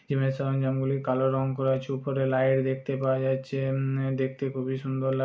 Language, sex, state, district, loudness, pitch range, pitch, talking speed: Bajjika, male, Bihar, Vaishali, -27 LUFS, 130-135 Hz, 135 Hz, 205 wpm